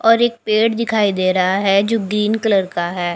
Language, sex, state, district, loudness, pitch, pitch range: Hindi, female, Punjab, Fazilka, -16 LUFS, 210 Hz, 185-225 Hz